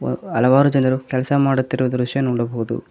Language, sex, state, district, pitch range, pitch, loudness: Kannada, male, Karnataka, Koppal, 120-135 Hz, 130 Hz, -18 LUFS